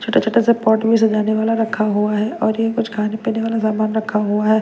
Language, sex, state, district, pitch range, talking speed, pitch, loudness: Hindi, female, Punjab, Kapurthala, 215-225 Hz, 245 wpm, 220 Hz, -17 LUFS